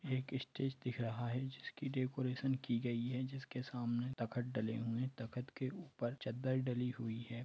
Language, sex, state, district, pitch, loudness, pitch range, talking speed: Hindi, male, Jharkhand, Sahebganj, 125 Hz, -42 LUFS, 120-130 Hz, 200 wpm